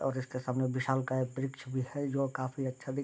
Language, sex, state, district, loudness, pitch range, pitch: Hindi, male, Bihar, Gopalganj, -34 LUFS, 130-135 Hz, 130 Hz